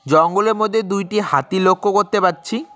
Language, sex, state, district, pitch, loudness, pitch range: Bengali, male, West Bengal, Cooch Behar, 200 Hz, -17 LUFS, 185-215 Hz